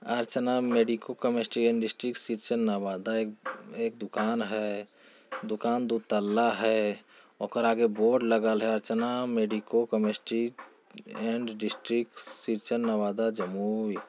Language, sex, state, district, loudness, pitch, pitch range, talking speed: Hindi, male, Bihar, Jamui, -29 LUFS, 115 Hz, 105-120 Hz, 120 wpm